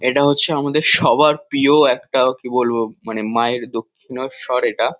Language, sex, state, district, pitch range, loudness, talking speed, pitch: Bengali, male, West Bengal, Kolkata, 115-150 Hz, -16 LUFS, 145 wpm, 130 Hz